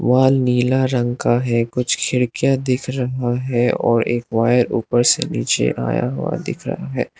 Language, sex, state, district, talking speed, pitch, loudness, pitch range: Hindi, male, Arunachal Pradesh, Lower Dibang Valley, 175 wpm, 125 Hz, -18 LUFS, 120-130 Hz